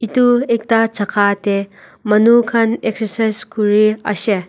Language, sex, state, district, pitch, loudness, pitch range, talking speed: Nagamese, female, Nagaland, Dimapur, 220 Hz, -15 LUFS, 210-230 Hz, 105 wpm